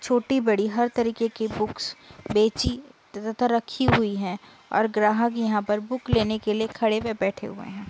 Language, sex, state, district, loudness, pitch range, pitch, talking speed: Hindi, female, Uttar Pradesh, Budaun, -24 LUFS, 210-235 Hz, 220 Hz, 190 wpm